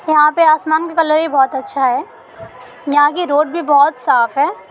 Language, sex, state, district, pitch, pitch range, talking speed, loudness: Hindi, female, Bihar, Gopalganj, 300 Hz, 270-315 Hz, 205 wpm, -14 LUFS